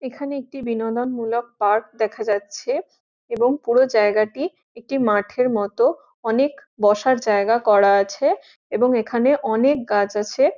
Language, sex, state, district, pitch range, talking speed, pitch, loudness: Bengali, female, West Bengal, Jhargram, 210-265 Hz, 130 wpm, 235 Hz, -20 LUFS